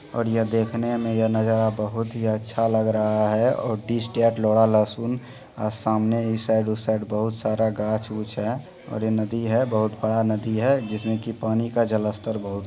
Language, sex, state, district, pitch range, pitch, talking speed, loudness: Hindi, male, Bihar, Supaul, 110-115 Hz, 110 Hz, 205 wpm, -23 LUFS